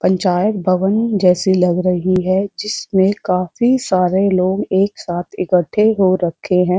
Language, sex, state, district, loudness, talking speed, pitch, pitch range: Hindi, female, Uttar Pradesh, Muzaffarnagar, -16 LUFS, 140 wpm, 185 Hz, 180-200 Hz